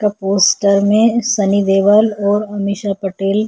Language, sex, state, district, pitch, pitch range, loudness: Hindi, female, Chhattisgarh, Korba, 200 Hz, 195-210 Hz, -14 LUFS